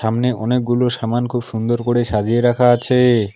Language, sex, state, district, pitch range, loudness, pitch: Bengali, male, West Bengal, Alipurduar, 115-125 Hz, -17 LUFS, 120 Hz